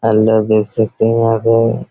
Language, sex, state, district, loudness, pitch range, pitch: Hindi, male, Chhattisgarh, Raigarh, -13 LUFS, 110-115 Hz, 110 Hz